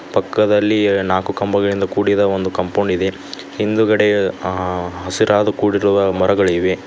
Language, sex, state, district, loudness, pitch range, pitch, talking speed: Kannada, male, Karnataka, Koppal, -16 LUFS, 95-105 Hz, 100 Hz, 105 wpm